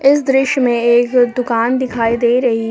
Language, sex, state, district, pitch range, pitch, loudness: Hindi, female, Jharkhand, Palamu, 235-260 Hz, 245 Hz, -14 LUFS